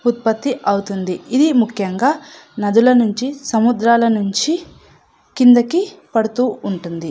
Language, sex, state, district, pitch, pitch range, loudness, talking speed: Telugu, female, Andhra Pradesh, Anantapur, 235 Hz, 205-265 Hz, -16 LUFS, 95 wpm